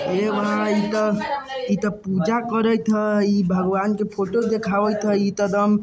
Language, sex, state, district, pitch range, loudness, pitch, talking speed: Bajjika, male, Bihar, Vaishali, 200-215 Hz, -21 LUFS, 210 Hz, 165 wpm